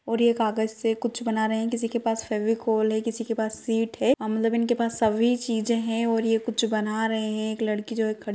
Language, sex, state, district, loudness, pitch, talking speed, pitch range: Hindi, female, Maharashtra, Solapur, -25 LUFS, 225 Hz, 215 wpm, 220-230 Hz